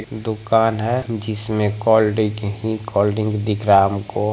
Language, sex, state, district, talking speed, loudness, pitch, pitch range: Hindi, male, Bihar, Begusarai, 125 wpm, -19 LUFS, 110 Hz, 105-110 Hz